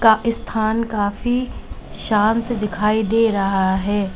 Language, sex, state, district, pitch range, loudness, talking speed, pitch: Hindi, female, Uttar Pradesh, Lalitpur, 205-230 Hz, -19 LUFS, 115 wpm, 215 Hz